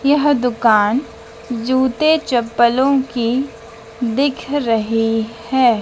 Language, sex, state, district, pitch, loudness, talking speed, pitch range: Hindi, female, Madhya Pradesh, Dhar, 240 Hz, -17 LUFS, 80 wpm, 230-265 Hz